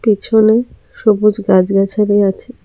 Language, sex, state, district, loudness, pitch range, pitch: Bengali, female, Tripura, South Tripura, -13 LUFS, 195-220 Hz, 210 Hz